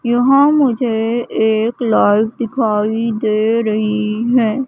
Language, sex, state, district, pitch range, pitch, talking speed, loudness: Hindi, female, Madhya Pradesh, Katni, 215-240 Hz, 225 Hz, 100 wpm, -15 LUFS